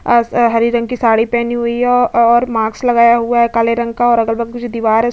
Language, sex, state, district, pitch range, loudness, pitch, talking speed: Hindi, female, Chhattisgarh, Bastar, 230-240 Hz, -13 LUFS, 235 Hz, 270 wpm